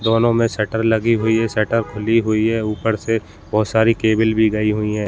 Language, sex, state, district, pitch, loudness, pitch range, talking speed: Hindi, male, Uttar Pradesh, Budaun, 110 Hz, -18 LUFS, 105-115 Hz, 225 wpm